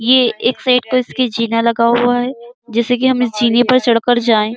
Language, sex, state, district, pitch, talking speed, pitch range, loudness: Hindi, female, Uttar Pradesh, Jyotiba Phule Nagar, 245 Hz, 235 wpm, 235-250 Hz, -14 LUFS